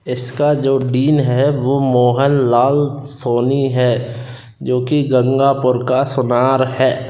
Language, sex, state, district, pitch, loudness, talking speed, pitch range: Hindi, male, Rajasthan, Jaipur, 130 Hz, -15 LUFS, 120 wpm, 125-140 Hz